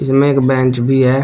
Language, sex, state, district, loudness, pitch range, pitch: Hindi, male, Uttar Pradesh, Shamli, -13 LUFS, 130-135 Hz, 130 Hz